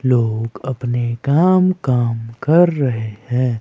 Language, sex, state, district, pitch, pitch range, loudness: Hindi, male, Himachal Pradesh, Shimla, 125 Hz, 115-145 Hz, -17 LUFS